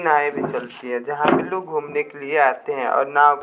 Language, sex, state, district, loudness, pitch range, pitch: Hindi, male, Bihar, West Champaran, -21 LUFS, 145-185 Hz, 145 Hz